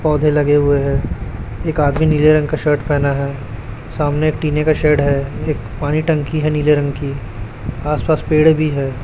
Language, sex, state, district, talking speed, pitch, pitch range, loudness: Hindi, male, Chhattisgarh, Raipur, 200 wpm, 145 Hz, 135-155 Hz, -16 LUFS